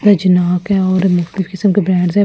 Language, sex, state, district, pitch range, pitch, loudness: Hindi, female, Delhi, New Delhi, 180-200 Hz, 190 Hz, -14 LUFS